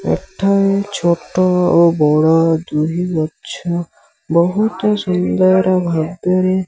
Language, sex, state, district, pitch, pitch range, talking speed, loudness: Odia, male, Odisha, Sambalpur, 180 Hz, 165-185 Hz, 90 wpm, -15 LUFS